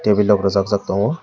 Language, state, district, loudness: Kokborok, Tripura, West Tripura, -17 LUFS